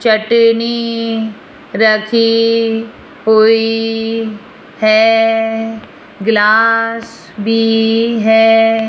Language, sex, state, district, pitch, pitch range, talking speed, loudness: Hindi, female, Rajasthan, Jaipur, 225 Hz, 220-230 Hz, 45 wpm, -12 LUFS